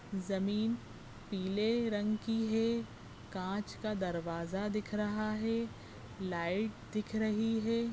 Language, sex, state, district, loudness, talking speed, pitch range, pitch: Hindi, female, Goa, North and South Goa, -36 LUFS, 115 wpm, 190-220 Hz, 210 Hz